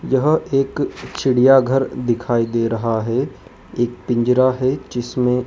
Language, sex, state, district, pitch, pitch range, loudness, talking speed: Hindi, male, Madhya Pradesh, Dhar, 125 Hz, 120-135 Hz, -18 LUFS, 120 wpm